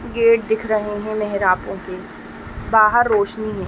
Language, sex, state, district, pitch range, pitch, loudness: Hindi, female, Uttar Pradesh, Etah, 200-220 Hz, 215 Hz, -18 LUFS